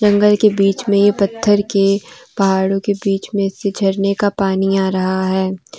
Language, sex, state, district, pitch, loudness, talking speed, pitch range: Hindi, female, Jharkhand, Deoghar, 195 Hz, -16 LUFS, 175 wpm, 195-205 Hz